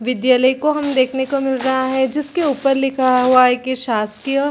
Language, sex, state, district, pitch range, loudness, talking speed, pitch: Hindi, female, Chhattisgarh, Bilaspur, 255-275 Hz, -16 LUFS, 200 wpm, 265 Hz